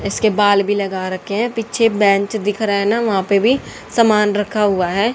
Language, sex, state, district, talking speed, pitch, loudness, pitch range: Hindi, female, Haryana, Charkhi Dadri, 220 wpm, 205 Hz, -16 LUFS, 200-220 Hz